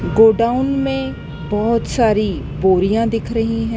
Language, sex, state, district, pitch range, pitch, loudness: Hindi, male, Madhya Pradesh, Dhar, 190-230 Hz, 220 Hz, -17 LUFS